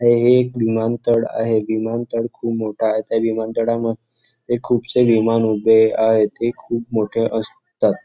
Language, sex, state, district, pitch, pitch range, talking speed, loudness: Marathi, male, Maharashtra, Nagpur, 115 Hz, 110-120 Hz, 135 wpm, -18 LUFS